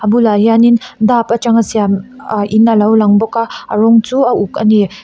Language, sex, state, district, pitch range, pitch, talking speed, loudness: Mizo, female, Mizoram, Aizawl, 210-235 Hz, 225 Hz, 225 wpm, -11 LUFS